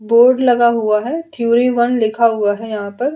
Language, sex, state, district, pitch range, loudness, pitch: Hindi, female, Uttar Pradesh, Hamirpur, 220-245 Hz, -15 LUFS, 235 Hz